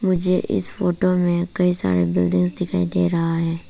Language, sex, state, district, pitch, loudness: Hindi, female, Arunachal Pradesh, Papum Pare, 165 Hz, -19 LUFS